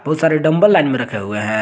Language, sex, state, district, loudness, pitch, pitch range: Hindi, male, Jharkhand, Garhwa, -15 LUFS, 150 Hz, 110-155 Hz